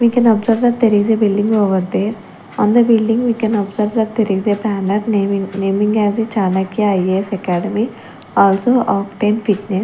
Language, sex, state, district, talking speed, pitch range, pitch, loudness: English, female, Chandigarh, Chandigarh, 185 wpm, 200-225 Hz, 210 Hz, -16 LUFS